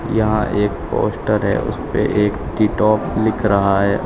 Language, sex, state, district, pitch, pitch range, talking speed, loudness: Hindi, male, Uttar Pradesh, Shamli, 105 Hz, 100-110 Hz, 150 wpm, -18 LUFS